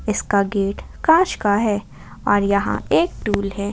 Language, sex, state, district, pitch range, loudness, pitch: Hindi, female, Jharkhand, Ranchi, 200-215 Hz, -19 LUFS, 205 Hz